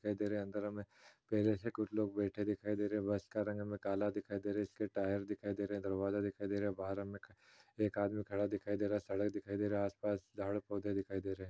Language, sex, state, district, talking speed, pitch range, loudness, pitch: Hindi, male, Uttar Pradesh, Ghazipur, 295 wpm, 100-105 Hz, -39 LUFS, 105 Hz